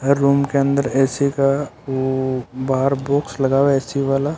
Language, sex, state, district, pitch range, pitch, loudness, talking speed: Hindi, male, Rajasthan, Bikaner, 135-140 Hz, 135 Hz, -19 LUFS, 180 wpm